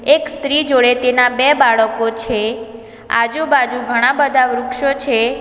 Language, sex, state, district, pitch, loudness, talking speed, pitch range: Gujarati, female, Gujarat, Valsad, 250 Hz, -14 LUFS, 135 wpm, 230-275 Hz